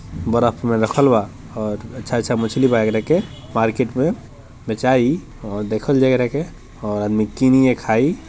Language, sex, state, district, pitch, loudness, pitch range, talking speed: Bhojpuri, male, Bihar, Gopalganj, 115 Hz, -19 LUFS, 110-130 Hz, 175 wpm